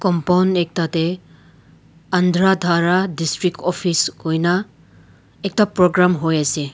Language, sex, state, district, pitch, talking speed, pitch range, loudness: Nagamese, male, Nagaland, Dimapur, 175 Hz, 105 wpm, 165-180 Hz, -18 LUFS